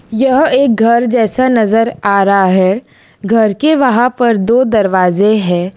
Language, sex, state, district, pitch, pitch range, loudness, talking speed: Hindi, female, Gujarat, Valsad, 225 Hz, 195-245 Hz, -11 LUFS, 155 wpm